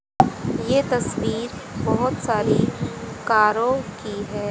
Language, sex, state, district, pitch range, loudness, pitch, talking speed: Hindi, female, Haryana, Jhajjar, 210-250 Hz, -22 LUFS, 220 Hz, 95 wpm